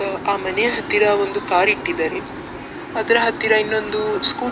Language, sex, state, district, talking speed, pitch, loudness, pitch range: Kannada, female, Karnataka, Dakshina Kannada, 145 wpm, 220 Hz, -18 LUFS, 210-230 Hz